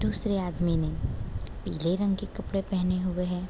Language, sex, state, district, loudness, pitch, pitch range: Hindi, female, Bihar, Gopalganj, -30 LUFS, 180 Hz, 155-190 Hz